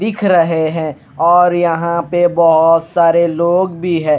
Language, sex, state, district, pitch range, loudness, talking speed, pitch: Hindi, male, Haryana, Rohtak, 165-175 Hz, -13 LUFS, 160 wpm, 170 Hz